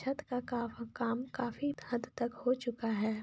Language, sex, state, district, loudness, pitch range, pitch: Hindi, female, Jharkhand, Sahebganj, -37 LUFS, 235-255 Hz, 240 Hz